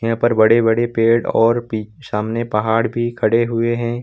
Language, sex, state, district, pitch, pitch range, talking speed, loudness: Hindi, male, Bihar, Samastipur, 115 Hz, 110-120 Hz, 180 wpm, -17 LUFS